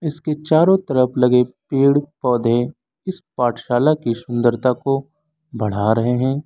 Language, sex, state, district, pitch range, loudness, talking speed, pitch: Hindi, male, Uttar Pradesh, Lalitpur, 120-150 Hz, -18 LUFS, 130 wpm, 130 Hz